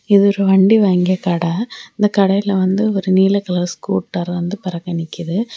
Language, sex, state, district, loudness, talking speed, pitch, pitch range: Tamil, female, Tamil Nadu, Kanyakumari, -16 LUFS, 160 wpm, 190 Hz, 175-200 Hz